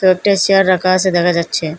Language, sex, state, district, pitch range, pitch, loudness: Bengali, female, Assam, Hailakandi, 175-190 Hz, 185 Hz, -13 LUFS